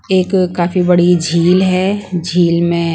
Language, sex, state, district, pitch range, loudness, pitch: Hindi, female, Punjab, Pathankot, 170-185 Hz, -13 LUFS, 175 Hz